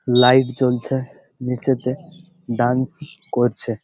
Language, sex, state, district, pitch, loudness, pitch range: Bengali, male, West Bengal, Malda, 130 Hz, -20 LUFS, 125-140 Hz